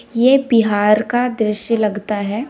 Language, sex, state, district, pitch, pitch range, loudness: Hindi, female, Bihar, Samastipur, 220 Hz, 210-245 Hz, -16 LUFS